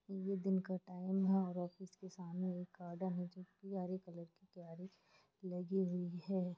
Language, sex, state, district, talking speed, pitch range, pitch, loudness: Hindi, female, Jharkhand, Jamtara, 175 wpm, 180-190 Hz, 185 Hz, -42 LUFS